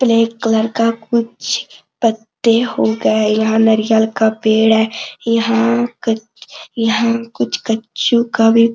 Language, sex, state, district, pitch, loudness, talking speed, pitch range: Hindi, female, Jharkhand, Sahebganj, 225 Hz, -15 LUFS, 130 wpm, 220-230 Hz